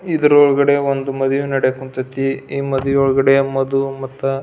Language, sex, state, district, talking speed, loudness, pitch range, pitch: Kannada, male, Karnataka, Belgaum, 120 wpm, -16 LUFS, 135-140 Hz, 135 Hz